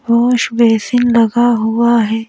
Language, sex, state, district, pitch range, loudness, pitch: Hindi, female, Madhya Pradesh, Bhopal, 225-240 Hz, -12 LUFS, 235 Hz